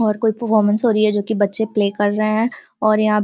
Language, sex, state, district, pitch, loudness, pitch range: Hindi, female, Uttar Pradesh, Deoria, 215 Hz, -17 LUFS, 210-220 Hz